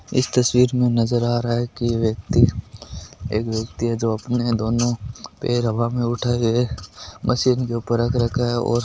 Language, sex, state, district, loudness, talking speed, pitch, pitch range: Marwari, male, Rajasthan, Nagaur, -21 LUFS, 195 wpm, 120 Hz, 115-120 Hz